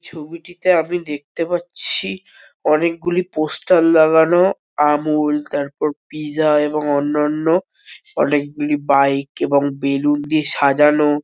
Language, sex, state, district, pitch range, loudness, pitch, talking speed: Bengali, male, West Bengal, North 24 Parganas, 145-165 Hz, -17 LUFS, 150 Hz, 95 wpm